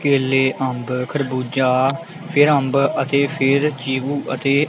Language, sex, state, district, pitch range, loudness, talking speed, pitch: Punjabi, male, Punjab, Kapurthala, 130-145 Hz, -19 LUFS, 130 wpm, 135 Hz